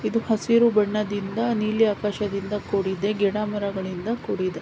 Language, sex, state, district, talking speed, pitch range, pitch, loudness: Kannada, female, Karnataka, Mysore, 105 wpm, 200-220 Hz, 210 Hz, -24 LUFS